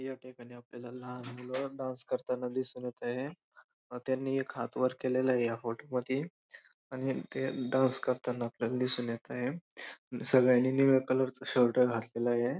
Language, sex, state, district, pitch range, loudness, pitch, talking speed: Marathi, male, Maharashtra, Dhule, 120-130 Hz, -32 LUFS, 125 Hz, 165 wpm